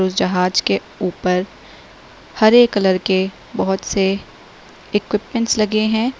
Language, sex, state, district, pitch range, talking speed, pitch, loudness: Hindi, female, Uttar Pradesh, Lalitpur, 185-215 Hz, 105 wpm, 195 Hz, -17 LUFS